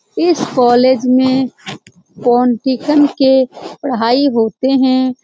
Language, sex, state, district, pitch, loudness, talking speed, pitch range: Hindi, female, Bihar, Saran, 260 Hz, -13 LUFS, 90 wpm, 245-265 Hz